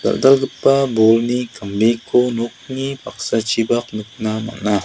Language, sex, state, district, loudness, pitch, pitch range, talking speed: Garo, male, Meghalaya, South Garo Hills, -18 LUFS, 115 Hz, 110-125 Hz, 85 wpm